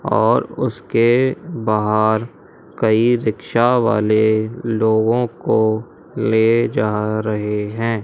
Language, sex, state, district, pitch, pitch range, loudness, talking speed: Hindi, male, Madhya Pradesh, Umaria, 110 Hz, 110-115 Hz, -17 LUFS, 90 wpm